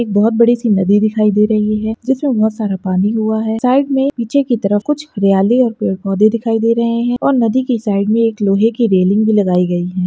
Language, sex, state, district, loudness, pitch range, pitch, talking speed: Hindi, female, Maharashtra, Solapur, -14 LUFS, 205-235 Hz, 220 Hz, 245 wpm